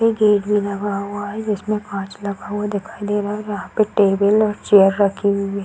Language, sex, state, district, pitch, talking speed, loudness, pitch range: Hindi, female, Bihar, Darbhanga, 205 Hz, 235 wpm, -19 LUFS, 200-210 Hz